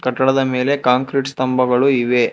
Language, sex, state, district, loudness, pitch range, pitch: Kannada, male, Karnataka, Bangalore, -16 LUFS, 125-135 Hz, 130 Hz